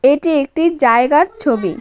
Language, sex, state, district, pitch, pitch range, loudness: Bengali, female, West Bengal, Cooch Behar, 285 Hz, 255-325 Hz, -14 LUFS